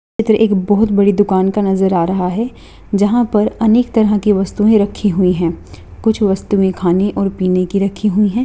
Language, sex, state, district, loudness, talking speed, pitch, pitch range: Hindi, female, Bihar, Bhagalpur, -14 LUFS, 200 wpm, 205 Hz, 190-215 Hz